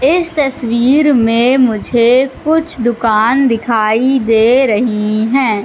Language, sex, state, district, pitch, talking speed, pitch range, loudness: Hindi, female, Madhya Pradesh, Katni, 240 Hz, 105 wpm, 225-270 Hz, -12 LUFS